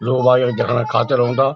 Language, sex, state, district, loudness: Garhwali, male, Uttarakhand, Uttarkashi, -16 LUFS